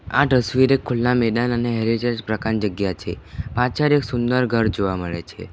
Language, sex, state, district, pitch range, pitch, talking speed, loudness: Gujarati, male, Gujarat, Valsad, 100-125 Hz, 115 Hz, 185 wpm, -21 LUFS